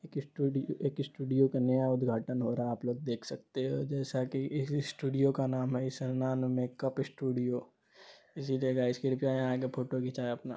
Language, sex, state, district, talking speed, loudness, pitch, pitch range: Hindi, male, Bihar, Supaul, 175 wpm, -33 LUFS, 130 Hz, 125-135 Hz